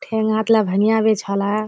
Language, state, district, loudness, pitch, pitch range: Surjapuri, Bihar, Kishanganj, -18 LUFS, 220 Hz, 205-220 Hz